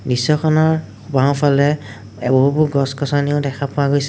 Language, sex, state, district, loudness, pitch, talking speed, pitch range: Assamese, male, Assam, Sonitpur, -17 LUFS, 140 Hz, 90 wpm, 130-145 Hz